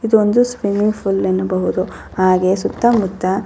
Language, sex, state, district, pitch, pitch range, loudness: Kannada, female, Karnataka, Raichur, 200 Hz, 185-220 Hz, -16 LUFS